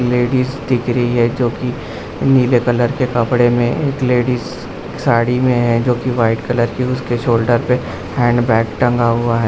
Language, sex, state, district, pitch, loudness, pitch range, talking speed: Hindi, male, Bihar, Gaya, 120 Hz, -16 LUFS, 120-125 Hz, 185 wpm